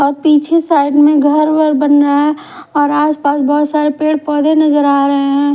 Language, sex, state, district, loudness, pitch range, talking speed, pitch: Hindi, female, Punjab, Fazilka, -12 LUFS, 285-300 Hz, 195 wpm, 295 Hz